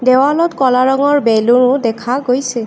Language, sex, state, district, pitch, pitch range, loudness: Assamese, female, Assam, Kamrup Metropolitan, 255 Hz, 240-275 Hz, -13 LUFS